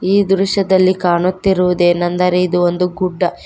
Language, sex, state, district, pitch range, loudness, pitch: Kannada, female, Karnataka, Koppal, 180-190 Hz, -14 LUFS, 180 Hz